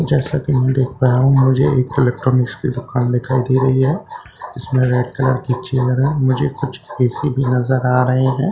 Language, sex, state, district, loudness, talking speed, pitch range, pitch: Hindi, male, Bihar, Katihar, -16 LUFS, 205 wpm, 125-135 Hz, 130 Hz